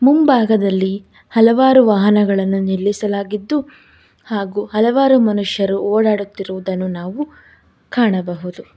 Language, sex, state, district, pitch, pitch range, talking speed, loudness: Kannada, female, Karnataka, Bangalore, 205 Hz, 195-235 Hz, 70 wpm, -16 LUFS